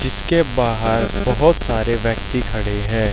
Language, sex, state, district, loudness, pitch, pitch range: Hindi, male, Haryana, Charkhi Dadri, -19 LUFS, 115 Hz, 110-125 Hz